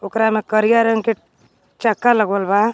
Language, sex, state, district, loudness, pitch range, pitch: Magahi, female, Jharkhand, Palamu, -17 LUFS, 210-225 Hz, 220 Hz